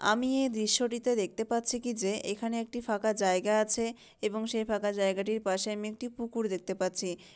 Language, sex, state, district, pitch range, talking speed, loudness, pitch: Bengali, female, West Bengal, Malda, 200-235 Hz, 185 wpm, -31 LUFS, 215 Hz